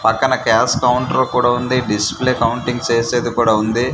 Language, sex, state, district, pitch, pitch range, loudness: Telugu, male, Andhra Pradesh, Manyam, 120 Hz, 115-125 Hz, -16 LUFS